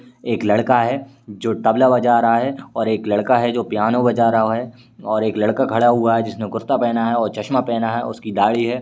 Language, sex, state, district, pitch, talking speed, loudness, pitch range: Hindi, male, Uttar Pradesh, Varanasi, 115 Hz, 240 wpm, -18 LUFS, 110-120 Hz